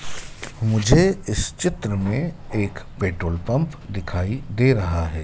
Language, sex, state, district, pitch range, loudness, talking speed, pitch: Hindi, male, Madhya Pradesh, Dhar, 95-135 Hz, -22 LUFS, 125 wpm, 110 Hz